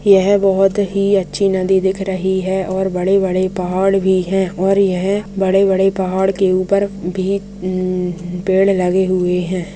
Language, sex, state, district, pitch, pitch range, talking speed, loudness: Hindi, male, Chhattisgarh, Rajnandgaon, 190 Hz, 185-195 Hz, 155 wpm, -16 LUFS